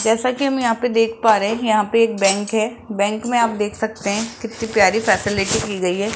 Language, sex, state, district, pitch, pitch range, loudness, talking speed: Hindi, female, Rajasthan, Jaipur, 220 Hz, 205-230 Hz, -18 LUFS, 245 wpm